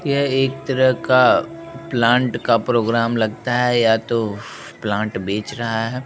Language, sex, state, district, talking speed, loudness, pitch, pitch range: Hindi, male, Bihar, Begusarai, 150 wpm, -18 LUFS, 120 Hz, 110-130 Hz